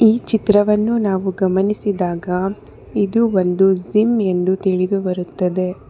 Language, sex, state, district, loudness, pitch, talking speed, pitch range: Kannada, female, Karnataka, Bangalore, -17 LUFS, 190 Hz, 100 wpm, 185-210 Hz